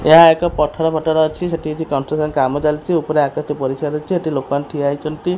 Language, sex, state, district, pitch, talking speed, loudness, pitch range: Odia, female, Odisha, Khordha, 155 Hz, 200 wpm, -17 LUFS, 145-160 Hz